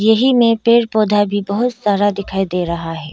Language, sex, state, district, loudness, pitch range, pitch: Hindi, female, Arunachal Pradesh, Lower Dibang Valley, -15 LUFS, 195-230 Hz, 205 Hz